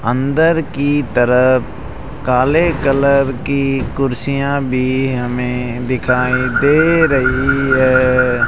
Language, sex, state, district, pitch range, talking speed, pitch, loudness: Hindi, male, Rajasthan, Jaipur, 125-140 Hz, 90 wpm, 130 Hz, -14 LUFS